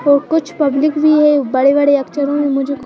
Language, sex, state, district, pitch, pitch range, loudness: Hindi, female, Madhya Pradesh, Bhopal, 285 Hz, 275-300 Hz, -14 LUFS